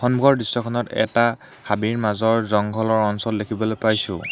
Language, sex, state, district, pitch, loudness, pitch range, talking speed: Assamese, male, Assam, Hailakandi, 110 Hz, -21 LUFS, 105-120 Hz, 125 wpm